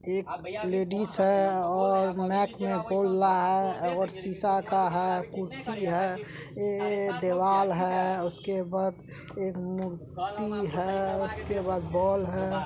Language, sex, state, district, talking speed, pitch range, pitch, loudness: Maithili, female, Bihar, Supaul, 135 wpm, 180-195 Hz, 190 Hz, -28 LUFS